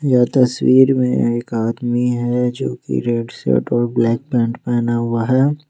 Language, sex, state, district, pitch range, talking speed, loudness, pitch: Hindi, male, Jharkhand, Ranchi, 115-125 Hz, 170 wpm, -17 LUFS, 120 Hz